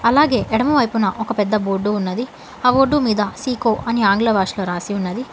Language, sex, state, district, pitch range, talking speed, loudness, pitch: Telugu, female, Telangana, Hyderabad, 200-250 Hz, 180 wpm, -18 LUFS, 225 Hz